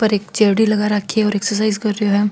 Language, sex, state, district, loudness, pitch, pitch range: Marwari, female, Rajasthan, Nagaur, -17 LUFS, 210 Hz, 205-215 Hz